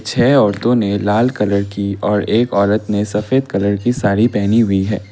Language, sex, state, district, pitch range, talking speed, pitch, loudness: Hindi, male, Assam, Kamrup Metropolitan, 100-115 Hz, 200 wpm, 105 Hz, -15 LUFS